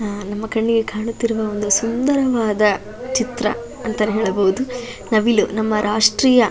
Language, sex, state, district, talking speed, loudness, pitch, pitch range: Kannada, female, Karnataka, Shimoga, 120 wpm, -19 LUFS, 220 Hz, 210-235 Hz